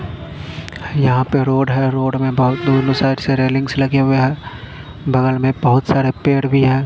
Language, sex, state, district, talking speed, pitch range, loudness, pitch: Hindi, male, Punjab, Fazilka, 165 wpm, 130-135 Hz, -16 LUFS, 135 Hz